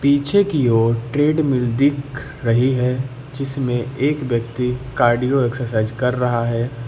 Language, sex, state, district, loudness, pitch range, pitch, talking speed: Hindi, male, Uttar Pradesh, Lucknow, -19 LUFS, 120-140 Hz, 125 Hz, 130 wpm